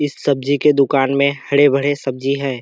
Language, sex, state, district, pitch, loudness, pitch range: Hindi, male, Bihar, Kishanganj, 140 Hz, -16 LUFS, 135-145 Hz